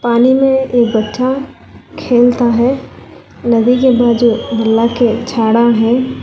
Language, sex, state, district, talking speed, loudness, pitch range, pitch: Hindi, female, Telangana, Hyderabad, 105 wpm, -12 LUFS, 230-255 Hz, 240 Hz